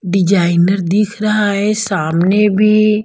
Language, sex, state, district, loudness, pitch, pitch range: Hindi, female, Bihar, Patna, -13 LUFS, 200 Hz, 185-210 Hz